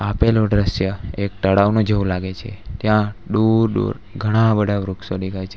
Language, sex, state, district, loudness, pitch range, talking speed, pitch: Gujarati, male, Gujarat, Valsad, -19 LUFS, 95-110 Hz, 160 wpm, 100 Hz